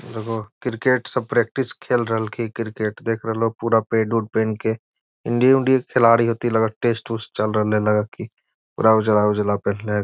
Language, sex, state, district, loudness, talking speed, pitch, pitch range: Magahi, male, Bihar, Gaya, -20 LUFS, 190 wpm, 110 Hz, 110-120 Hz